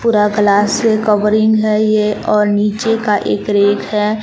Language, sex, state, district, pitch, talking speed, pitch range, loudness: Hindi, female, Jharkhand, Palamu, 210 Hz, 155 wpm, 210-215 Hz, -13 LUFS